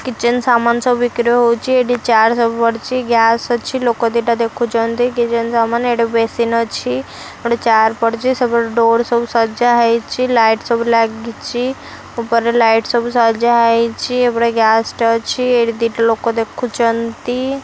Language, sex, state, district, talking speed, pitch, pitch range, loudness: Odia, female, Odisha, Khordha, 145 wpm, 235 Hz, 230-240 Hz, -15 LUFS